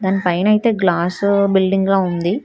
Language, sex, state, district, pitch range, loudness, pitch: Telugu, female, Telangana, Hyderabad, 180-200 Hz, -16 LUFS, 190 Hz